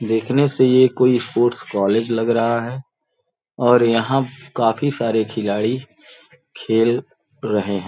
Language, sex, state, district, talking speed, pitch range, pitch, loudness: Hindi, male, Uttar Pradesh, Gorakhpur, 130 wpm, 110-130 Hz, 115 Hz, -18 LUFS